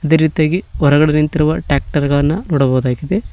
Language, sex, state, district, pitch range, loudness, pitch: Kannada, male, Karnataka, Koppal, 145-160 Hz, -15 LUFS, 150 Hz